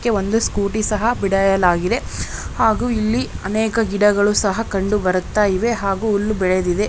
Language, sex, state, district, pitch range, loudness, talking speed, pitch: Kannada, female, Karnataka, Dharwad, 195-220 Hz, -18 LUFS, 115 wpm, 205 Hz